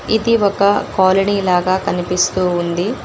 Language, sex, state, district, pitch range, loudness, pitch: Telugu, female, Telangana, Mahabubabad, 180-200 Hz, -15 LUFS, 185 Hz